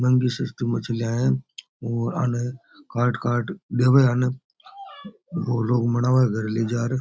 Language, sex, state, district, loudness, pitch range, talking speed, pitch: Rajasthani, male, Rajasthan, Churu, -23 LUFS, 115-130 Hz, 145 wpm, 120 Hz